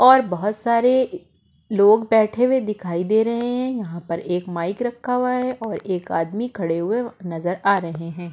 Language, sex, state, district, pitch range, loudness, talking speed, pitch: Hindi, female, Goa, North and South Goa, 175-245 Hz, -21 LUFS, 185 wpm, 210 Hz